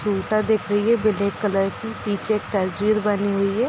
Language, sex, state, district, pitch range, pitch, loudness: Hindi, female, Bihar, Darbhanga, 200-215 Hz, 205 Hz, -22 LUFS